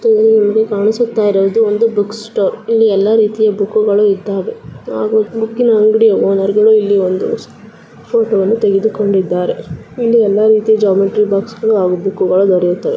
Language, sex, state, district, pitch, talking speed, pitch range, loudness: Kannada, female, Karnataka, Dakshina Kannada, 215 Hz, 130 wpm, 195-220 Hz, -13 LUFS